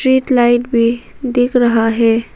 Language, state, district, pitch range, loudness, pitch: Hindi, Arunachal Pradesh, Papum Pare, 230-250 Hz, -14 LUFS, 240 Hz